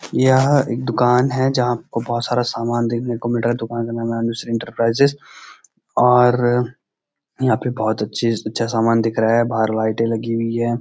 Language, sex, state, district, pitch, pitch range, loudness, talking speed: Hindi, male, Uttarakhand, Uttarkashi, 115 Hz, 115-125 Hz, -19 LUFS, 195 wpm